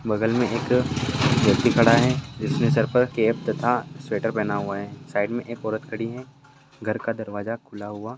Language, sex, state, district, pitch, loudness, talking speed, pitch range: Hindi, male, Maharashtra, Pune, 115 Hz, -23 LUFS, 185 wpm, 110-125 Hz